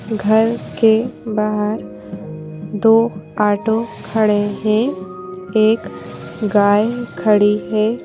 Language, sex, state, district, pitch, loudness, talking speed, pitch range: Hindi, female, Madhya Pradesh, Bhopal, 210 Hz, -17 LUFS, 80 wpm, 205-220 Hz